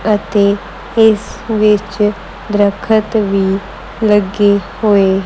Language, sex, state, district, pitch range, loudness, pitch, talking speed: Punjabi, female, Punjab, Kapurthala, 195-215 Hz, -13 LUFS, 205 Hz, 80 wpm